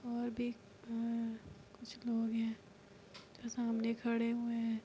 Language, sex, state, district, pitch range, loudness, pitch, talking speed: Hindi, female, Uttar Pradesh, Etah, 225-235 Hz, -39 LUFS, 230 Hz, 135 wpm